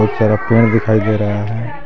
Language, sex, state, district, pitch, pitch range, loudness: Hindi, male, Jharkhand, Garhwa, 110 Hz, 105-115 Hz, -15 LUFS